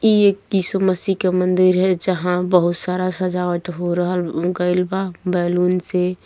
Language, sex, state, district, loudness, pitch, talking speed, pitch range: Bhojpuri, male, Uttar Pradesh, Gorakhpur, -19 LUFS, 180 Hz, 170 wpm, 180-185 Hz